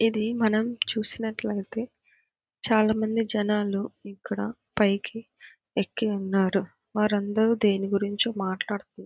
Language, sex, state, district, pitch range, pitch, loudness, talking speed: Telugu, female, Andhra Pradesh, Krishna, 200-225 Hz, 210 Hz, -27 LUFS, 95 wpm